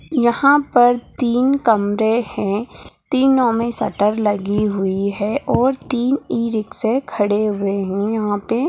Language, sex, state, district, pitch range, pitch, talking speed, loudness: Hindi, female, Bihar, Jahanabad, 205-250 Hz, 225 Hz, 130 wpm, -18 LUFS